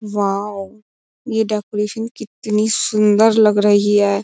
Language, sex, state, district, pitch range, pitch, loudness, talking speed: Hindi, female, Uttar Pradesh, Jyotiba Phule Nagar, 205-220 Hz, 210 Hz, -16 LUFS, 115 wpm